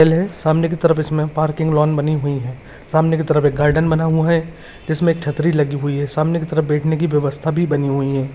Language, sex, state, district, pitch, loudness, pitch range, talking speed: Hindi, male, Uttarakhand, Uttarkashi, 155 Hz, -17 LUFS, 145-160 Hz, 230 wpm